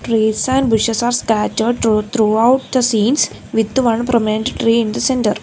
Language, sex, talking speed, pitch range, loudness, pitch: English, female, 190 wpm, 220-240 Hz, -15 LUFS, 230 Hz